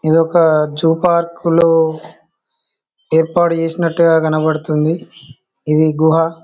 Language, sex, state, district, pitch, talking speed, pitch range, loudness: Telugu, male, Telangana, Karimnagar, 165 Hz, 95 wpm, 155-170 Hz, -14 LUFS